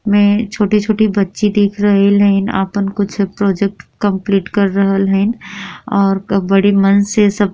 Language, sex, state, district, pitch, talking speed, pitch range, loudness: Bhojpuri, female, Uttar Pradesh, Deoria, 200 Hz, 160 wpm, 195-205 Hz, -14 LUFS